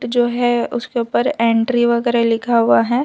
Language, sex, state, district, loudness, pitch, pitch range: Hindi, female, Gujarat, Valsad, -16 LUFS, 240 Hz, 230-245 Hz